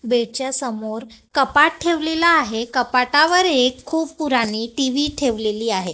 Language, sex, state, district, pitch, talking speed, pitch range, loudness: Marathi, female, Maharashtra, Gondia, 255 Hz, 130 wpm, 230-305 Hz, -18 LUFS